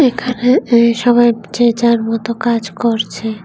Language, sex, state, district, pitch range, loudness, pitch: Bengali, female, Tripura, West Tripura, 225-240 Hz, -14 LUFS, 235 Hz